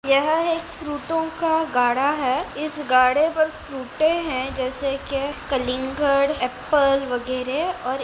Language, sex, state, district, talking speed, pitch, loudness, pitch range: Hindi, female, Bihar, Jamui, 135 wpm, 280 Hz, -22 LUFS, 260-310 Hz